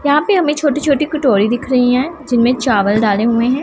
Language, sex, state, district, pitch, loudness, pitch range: Hindi, female, Punjab, Pathankot, 260 Hz, -14 LUFS, 235-295 Hz